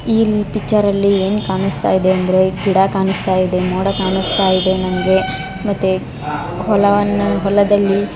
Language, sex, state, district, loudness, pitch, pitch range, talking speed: Kannada, female, Karnataka, Bijapur, -15 LUFS, 190 Hz, 185-200 Hz, 115 wpm